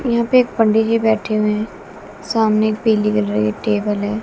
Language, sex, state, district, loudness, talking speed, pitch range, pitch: Hindi, female, Bihar, West Champaran, -17 LUFS, 185 wpm, 210-225 Hz, 215 Hz